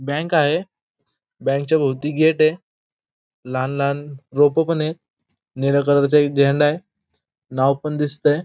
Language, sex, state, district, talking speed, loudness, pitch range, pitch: Marathi, male, Maharashtra, Pune, 115 wpm, -19 LUFS, 140-155 Hz, 145 Hz